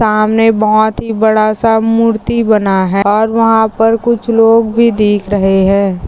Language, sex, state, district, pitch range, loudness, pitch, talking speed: Hindi, male, Maharashtra, Aurangabad, 210-225 Hz, -11 LUFS, 220 Hz, 160 wpm